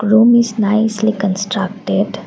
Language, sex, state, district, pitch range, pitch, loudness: English, female, Assam, Kamrup Metropolitan, 200-220 Hz, 215 Hz, -15 LUFS